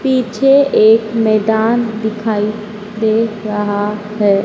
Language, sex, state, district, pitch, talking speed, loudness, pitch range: Hindi, female, Madhya Pradesh, Dhar, 220 Hz, 95 wpm, -14 LUFS, 210-225 Hz